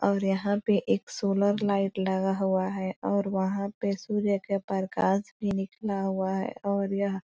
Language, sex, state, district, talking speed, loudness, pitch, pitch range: Hindi, female, Bihar, East Champaran, 175 wpm, -28 LUFS, 195 Hz, 190-200 Hz